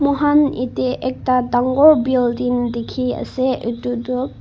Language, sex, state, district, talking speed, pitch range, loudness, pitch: Nagamese, female, Nagaland, Kohima, 110 wpm, 245-260 Hz, -18 LUFS, 255 Hz